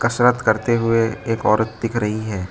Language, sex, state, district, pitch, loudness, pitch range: Hindi, male, Arunachal Pradesh, Lower Dibang Valley, 115 Hz, -19 LUFS, 110-115 Hz